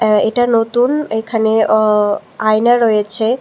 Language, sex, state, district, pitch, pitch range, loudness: Bengali, female, Tripura, West Tripura, 220 Hz, 215-240 Hz, -14 LUFS